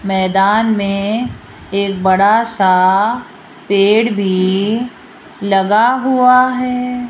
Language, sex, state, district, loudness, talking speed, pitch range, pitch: Hindi, female, Rajasthan, Jaipur, -13 LUFS, 85 wpm, 195-245 Hz, 205 Hz